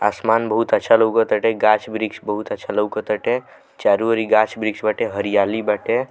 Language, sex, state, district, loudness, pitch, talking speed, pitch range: Bhojpuri, male, Bihar, Muzaffarpur, -19 LUFS, 110 Hz, 155 wpm, 105-110 Hz